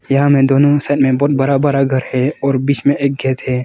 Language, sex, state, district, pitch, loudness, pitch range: Hindi, male, Arunachal Pradesh, Longding, 140 Hz, -14 LUFS, 130-140 Hz